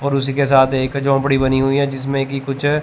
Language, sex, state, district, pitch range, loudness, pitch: Hindi, male, Chandigarh, Chandigarh, 135-140 Hz, -17 LUFS, 135 Hz